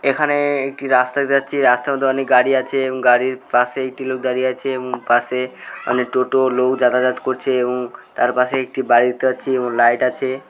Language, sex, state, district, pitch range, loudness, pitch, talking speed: Bengali, male, West Bengal, Malda, 125-135 Hz, -18 LUFS, 130 Hz, 195 wpm